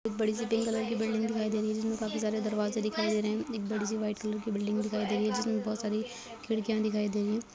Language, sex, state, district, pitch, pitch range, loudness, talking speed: Hindi, female, Bihar, Bhagalpur, 215 Hz, 215-225 Hz, -32 LUFS, 300 wpm